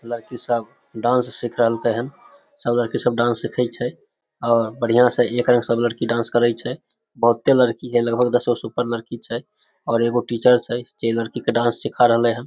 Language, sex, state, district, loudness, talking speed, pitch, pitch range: Maithili, male, Bihar, Samastipur, -20 LUFS, 210 wpm, 120 Hz, 115-120 Hz